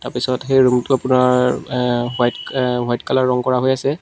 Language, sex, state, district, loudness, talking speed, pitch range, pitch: Assamese, male, Assam, Sonitpur, -17 LUFS, 210 wpm, 125-130 Hz, 125 Hz